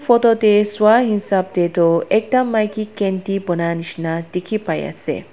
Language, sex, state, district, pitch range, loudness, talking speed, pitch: Nagamese, female, Nagaland, Dimapur, 175-215 Hz, -17 LUFS, 155 wpm, 200 Hz